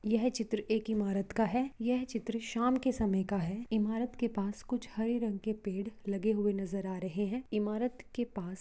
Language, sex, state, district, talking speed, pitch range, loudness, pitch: Hindi, female, Jharkhand, Sahebganj, 210 wpm, 200-235 Hz, -34 LUFS, 220 Hz